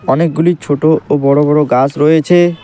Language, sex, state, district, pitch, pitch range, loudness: Bengali, male, West Bengal, Alipurduar, 150 Hz, 145-165 Hz, -11 LUFS